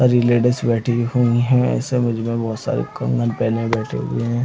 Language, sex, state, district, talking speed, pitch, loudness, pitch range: Hindi, male, Chhattisgarh, Raigarh, 230 wpm, 115 Hz, -19 LUFS, 110-120 Hz